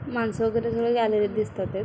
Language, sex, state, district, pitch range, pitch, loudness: Marathi, female, Maharashtra, Aurangabad, 210-230 Hz, 225 Hz, -25 LUFS